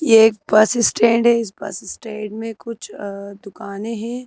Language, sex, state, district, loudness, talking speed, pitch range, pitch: Hindi, female, Madhya Pradesh, Bhopal, -18 LUFS, 180 wpm, 210-230 Hz, 225 Hz